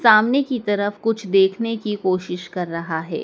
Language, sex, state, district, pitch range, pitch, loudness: Hindi, female, Madhya Pradesh, Dhar, 180-225 Hz, 205 Hz, -21 LUFS